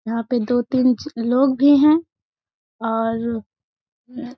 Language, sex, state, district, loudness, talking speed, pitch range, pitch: Hindi, female, Bihar, Gaya, -19 LUFS, 135 wpm, 230-265 Hz, 245 Hz